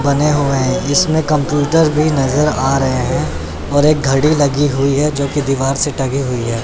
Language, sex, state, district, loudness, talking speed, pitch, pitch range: Hindi, male, Chandigarh, Chandigarh, -15 LUFS, 225 wpm, 140 Hz, 135-150 Hz